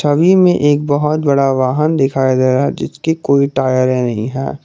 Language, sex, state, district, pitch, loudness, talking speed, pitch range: Hindi, male, Jharkhand, Garhwa, 135 Hz, -14 LUFS, 195 wpm, 130-150 Hz